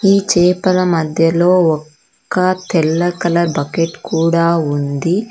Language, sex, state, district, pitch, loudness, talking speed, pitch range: Telugu, female, Karnataka, Bangalore, 170 Hz, -15 LUFS, 100 wpm, 160-180 Hz